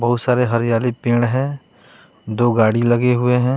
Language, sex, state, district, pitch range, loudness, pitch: Hindi, male, Bihar, West Champaran, 120-125 Hz, -17 LUFS, 120 Hz